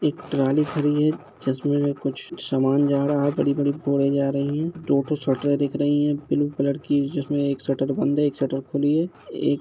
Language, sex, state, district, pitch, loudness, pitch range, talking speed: Hindi, male, Bihar, Gopalganj, 145 Hz, -23 LUFS, 140-145 Hz, 225 wpm